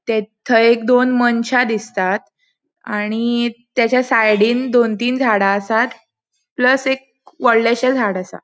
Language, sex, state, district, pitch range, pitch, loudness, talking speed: Konkani, female, Goa, North and South Goa, 220-255 Hz, 235 Hz, -16 LUFS, 130 wpm